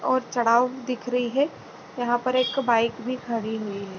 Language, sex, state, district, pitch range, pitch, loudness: Hindi, female, Uttarakhand, Tehri Garhwal, 230-255 Hz, 245 Hz, -25 LUFS